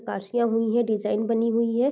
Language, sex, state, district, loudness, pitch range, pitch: Hindi, female, Bihar, East Champaran, -24 LUFS, 225-235 Hz, 230 Hz